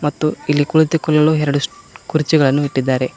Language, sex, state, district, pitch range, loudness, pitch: Kannada, male, Karnataka, Koppal, 140-155 Hz, -16 LUFS, 150 Hz